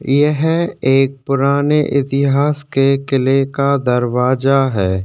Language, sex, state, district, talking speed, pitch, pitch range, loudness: Hindi, male, Chhattisgarh, Korba, 105 wpm, 135 Hz, 135-140 Hz, -15 LUFS